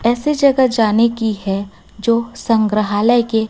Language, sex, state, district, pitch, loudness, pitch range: Hindi, female, Chhattisgarh, Raipur, 225 Hz, -16 LUFS, 215-235 Hz